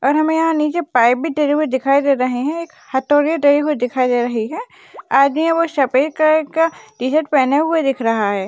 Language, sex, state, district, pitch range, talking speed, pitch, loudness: Hindi, female, Maharashtra, Dhule, 255-315 Hz, 205 wpm, 285 Hz, -16 LUFS